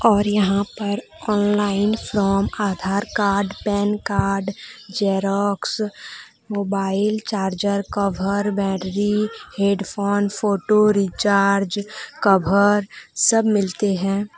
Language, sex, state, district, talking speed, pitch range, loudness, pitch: Hindi, female, Jharkhand, Deoghar, 90 wpm, 195-205 Hz, -20 LUFS, 200 Hz